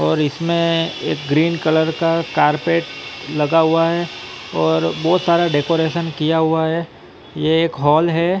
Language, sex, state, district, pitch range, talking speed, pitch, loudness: Hindi, male, Maharashtra, Mumbai Suburban, 150-170 Hz, 150 wpm, 160 Hz, -17 LUFS